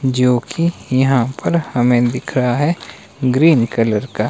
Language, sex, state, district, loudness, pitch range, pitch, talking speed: Hindi, male, Himachal Pradesh, Shimla, -16 LUFS, 120-135 Hz, 125 Hz, 155 wpm